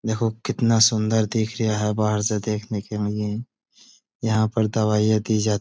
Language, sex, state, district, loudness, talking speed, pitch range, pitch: Hindi, male, Uttar Pradesh, Budaun, -22 LUFS, 170 wpm, 105-115 Hz, 110 Hz